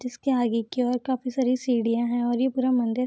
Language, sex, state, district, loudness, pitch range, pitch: Hindi, female, Bihar, Vaishali, -25 LUFS, 240-255 Hz, 250 Hz